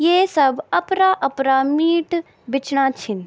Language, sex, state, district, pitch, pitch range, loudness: Garhwali, female, Uttarakhand, Tehri Garhwal, 285 Hz, 270-340 Hz, -18 LUFS